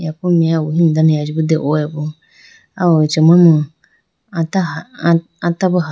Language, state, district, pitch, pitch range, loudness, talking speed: Idu Mishmi, Arunachal Pradesh, Lower Dibang Valley, 165 Hz, 155-170 Hz, -15 LUFS, 130 wpm